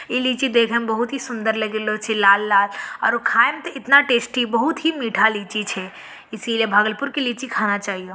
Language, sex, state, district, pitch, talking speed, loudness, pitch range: Angika, female, Bihar, Bhagalpur, 230 Hz, 190 wpm, -19 LUFS, 210-255 Hz